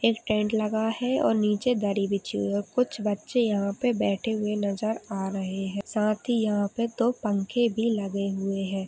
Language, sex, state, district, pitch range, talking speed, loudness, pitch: Hindi, female, Uttar Pradesh, Hamirpur, 200-230 Hz, 205 wpm, -27 LUFS, 210 Hz